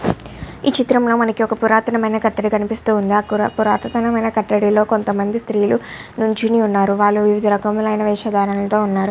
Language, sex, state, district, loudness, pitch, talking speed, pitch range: Telugu, female, Andhra Pradesh, Guntur, -17 LUFS, 215 Hz, 190 wpm, 210-225 Hz